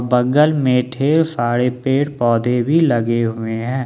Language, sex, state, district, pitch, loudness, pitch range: Hindi, male, Jharkhand, Ranchi, 125 Hz, -17 LUFS, 120-140 Hz